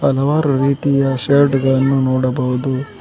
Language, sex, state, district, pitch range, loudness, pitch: Kannada, male, Karnataka, Koppal, 130-140 Hz, -15 LUFS, 135 Hz